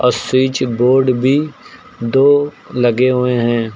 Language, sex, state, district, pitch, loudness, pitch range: Hindi, male, Uttar Pradesh, Lucknow, 130 Hz, -14 LUFS, 120-130 Hz